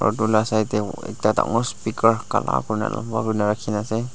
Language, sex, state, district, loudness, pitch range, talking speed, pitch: Nagamese, male, Nagaland, Dimapur, -22 LUFS, 105-115 Hz, 200 wpm, 110 Hz